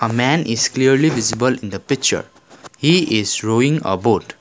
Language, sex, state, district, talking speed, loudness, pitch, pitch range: English, male, Assam, Kamrup Metropolitan, 175 wpm, -17 LUFS, 130 Hz, 115-150 Hz